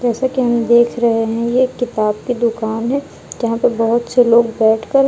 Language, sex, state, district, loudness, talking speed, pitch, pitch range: Hindi, female, Bihar, Kaimur, -15 LUFS, 200 wpm, 235 Hz, 225-245 Hz